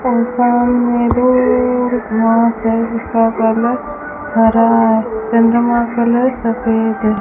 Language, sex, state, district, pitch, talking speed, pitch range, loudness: Hindi, female, Rajasthan, Bikaner, 235 Hz, 85 wpm, 225-245 Hz, -14 LUFS